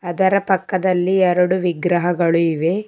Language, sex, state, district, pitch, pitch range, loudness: Kannada, female, Karnataka, Bidar, 180 Hz, 175-190 Hz, -17 LUFS